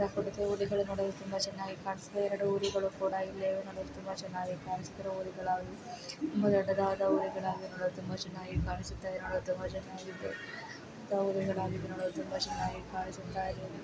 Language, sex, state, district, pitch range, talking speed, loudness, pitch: Kannada, female, Karnataka, Shimoga, 185-195 Hz, 125 wpm, -36 LUFS, 195 Hz